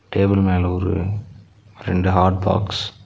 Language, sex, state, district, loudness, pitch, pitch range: Tamil, male, Tamil Nadu, Nilgiris, -19 LUFS, 100 Hz, 95-105 Hz